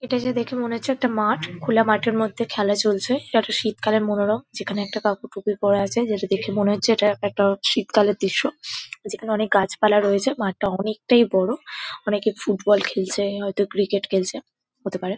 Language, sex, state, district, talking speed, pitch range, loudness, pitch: Bengali, female, West Bengal, Kolkata, 180 wpm, 200-225 Hz, -22 LUFS, 210 Hz